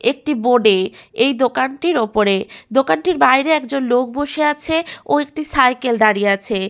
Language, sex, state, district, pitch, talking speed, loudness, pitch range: Bengali, female, West Bengal, Malda, 255 Hz, 145 wpm, -16 LUFS, 215-295 Hz